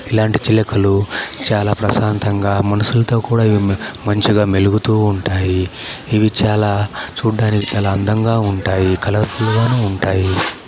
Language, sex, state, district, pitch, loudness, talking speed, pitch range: Telugu, male, Andhra Pradesh, Chittoor, 105 Hz, -16 LUFS, 105 wpm, 100-110 Hz